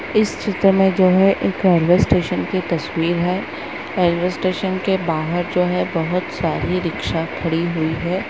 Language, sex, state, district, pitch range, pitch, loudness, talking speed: Hindi, female, West Bengal, Purulia, 170-190 Hz, 180 Hz, -19 LUFS, 175 wpm